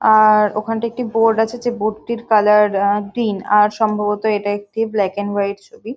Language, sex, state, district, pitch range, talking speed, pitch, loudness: Bengali, female, West Bengal, Jhargram, 205-225 Hz, 190 wpm, 215 Hz, -17 LUFS